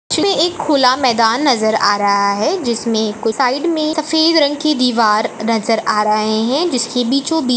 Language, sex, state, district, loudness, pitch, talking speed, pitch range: Hindi, female, Chhattisgarh, Balrampur, -15 LUFS, 245 Hz, 175 wpm, 220-295 Hz